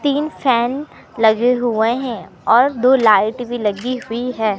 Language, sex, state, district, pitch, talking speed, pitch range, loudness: Hindi, male, Madhya Pradesh, Katni, 245 Hz, 155 wpm, 225-255 Hz, -17 LUFS